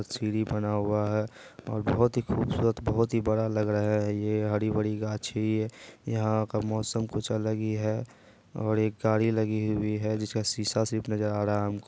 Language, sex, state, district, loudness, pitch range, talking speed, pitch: Hindi, male, Bihar, Purnia, -29 LUFS, 105-110 Hz, 200 wpm, 110 Hz